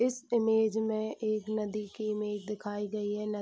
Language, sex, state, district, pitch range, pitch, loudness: Hindi, female, Bihar, Saharsa, 210-220 Hz, 215 Hz, -32 LUFS